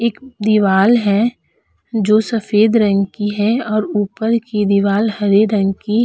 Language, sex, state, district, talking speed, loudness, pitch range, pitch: Hindi, female, Uttar Pradesh, Budaun, 160 wpm, -15 LUFS, 205-225 Hz, 215 Hz